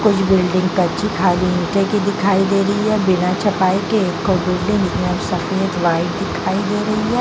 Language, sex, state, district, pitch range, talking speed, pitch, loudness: Hindi, female, Bihar, Vaishali, 180-205 Hz, 115 wpm, 190 Hz, -17 LUFS